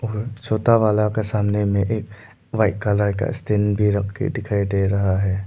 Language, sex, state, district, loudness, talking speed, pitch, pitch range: Hindi, male, Arunachal Pradesh, Lower Dibang Valley, -21 LUFS, 165 wpm, 105 Hz, 100-110 Hz